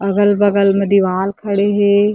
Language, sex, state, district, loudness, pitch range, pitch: Chhattisgarhi, female, Chhattisgarh, Korba, -14 LUFS, 195-205 Hz, 200 Hz